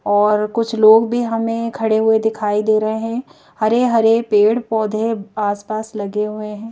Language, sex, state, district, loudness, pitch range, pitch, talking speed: Hindi, female, Madhya Pradesh, Bhopal, -17 LUFS, 210-225 Hz, 220 Hz, 160 wpm